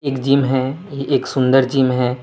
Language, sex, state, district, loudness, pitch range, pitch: Hindi, male, Tripura, West Tripura, -17 LUFS, 130-140 Hz, 135 Hz